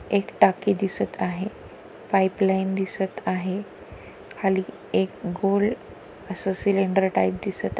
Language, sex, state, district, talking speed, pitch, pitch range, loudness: Marathi, female, Maharashtra, Pune, 115 wpm, 195 Hz, 190-195 Hz, -24 LUFS